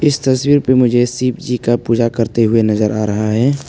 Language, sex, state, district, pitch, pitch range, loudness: Hindi, male, Arunachal Pradesh, Papum Pare, 120 Hz, 115-130 Hz, -14 LUFS